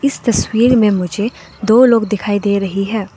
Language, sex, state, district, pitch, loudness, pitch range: Hindi, female, Arunachal Pradesh, Lower Dibang Valley, 215 Hz, -14 LUFS, 200-235 Hz